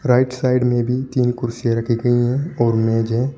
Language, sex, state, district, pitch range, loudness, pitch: Hindi, male, Uttar Pradesh, Shamli, 115-130 Hz, -18 LUFS, 120 Hz